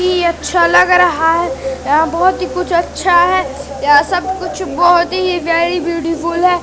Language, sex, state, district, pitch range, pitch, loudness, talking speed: Hindi, female, Madhya Pradesh, Katni, 330-360 Hz, 345 Hz, -13 LUFS, 170 wpm